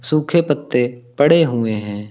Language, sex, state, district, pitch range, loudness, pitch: Hindi, male, Uttar Pradesh, Lucknow, 120-155 Hz, -17 LUFS, 125 Hz